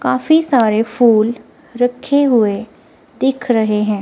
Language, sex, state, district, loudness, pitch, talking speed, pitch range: Hindi, female, Himachal Pradesh, Shimla, -14 LUFS, 235 Hz, 120 wpm, 215-265 Hz